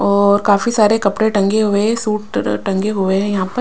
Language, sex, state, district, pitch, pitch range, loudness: Hindi, female, Maharashtra, Washim, 205 Hz, 200-215 Hz, -15 LUFS